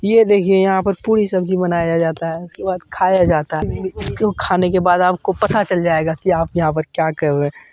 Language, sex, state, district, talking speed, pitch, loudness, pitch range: Hindi, male, Bihar, Jamui, 230 wpm, 180 Hz, -17 LUFS, 165-195 Hz